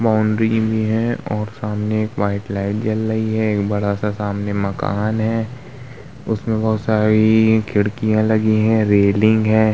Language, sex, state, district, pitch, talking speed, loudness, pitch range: Hindi, male, Bihar, Vaishali, 110 Hz, 140 wpm, -18 LUFS, 105-110 Hz